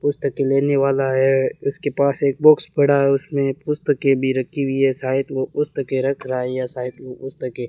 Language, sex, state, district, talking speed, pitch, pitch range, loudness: Hindi, male, Rajasthan, Bikaner, 210 wpm, 135 Hz, 130-140 Hz, -20 LUFS